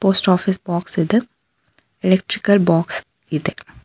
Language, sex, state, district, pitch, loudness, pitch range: Kannada, female, Karnataka, Bangalore, 185 Hz, -18 LUFS, 170-200 Hz